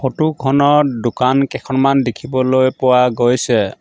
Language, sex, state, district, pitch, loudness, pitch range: Assamese, male, Assam, Sonitpur, 130 Hz, -15 LUFS, 125-135 Hz